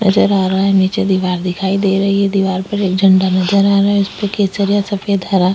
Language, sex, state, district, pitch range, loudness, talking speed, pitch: Hindi, female, Chhattisgarh, Sukma, 190-200 Hz, -14 LUFS, 250 wpm, 195 Hz